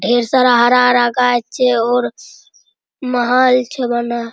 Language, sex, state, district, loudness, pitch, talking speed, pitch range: Maithili, female, Bihar, Araria, -14 LUFS, 245 Hz, 155 wpm, 240-250 Hz